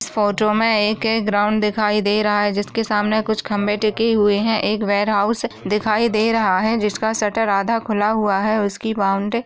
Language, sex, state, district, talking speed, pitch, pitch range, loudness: Hindi, female, Maharashtra, Solapur, 215 wpm, 210 Hz, 205-220 Hz, -18 LUFS